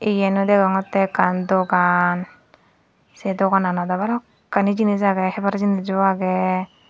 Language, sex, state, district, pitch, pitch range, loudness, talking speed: Chakma, female, Tripura, Dhalai, 195 Hz, 185-200 Hz, -20 LUFS, 115 wpm